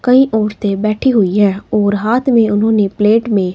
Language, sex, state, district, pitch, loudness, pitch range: Hindi, female, Himachal Pradesh, Shimla, 210 Hz, -13 LUFS, 205-230 Hz